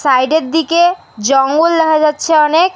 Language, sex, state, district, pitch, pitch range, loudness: Bengali, female, West Bengal, Alipurduar, 315 Hz, 275-330 Hz, -12 LUFS